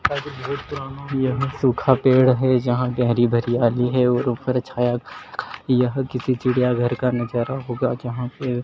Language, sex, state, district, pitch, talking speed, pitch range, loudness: Hindi, male, Madhya Pradesh, Dhar, 125 Hz, 145 wpm, 120-130 Hz, -21 LUFS